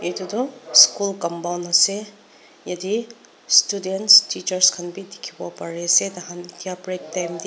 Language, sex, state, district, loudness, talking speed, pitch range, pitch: Nagamese, female, Nagaland, Dimapur, -18 LUFS, 145 wpm, 175-200 Hz, 185 Hz